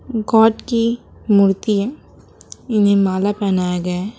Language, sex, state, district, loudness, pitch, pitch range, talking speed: Hindi, female, West Bengal, Alipurduar, -17 LUFS, 205 Hz, 195-225 Hz, 130 wpm